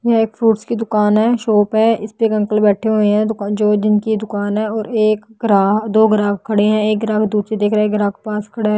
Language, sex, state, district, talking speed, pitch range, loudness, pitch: Hindi, female, Haryana, Jhajjar, 260 wpm, 210-220 Hz, -16 LUFS, 215 Hz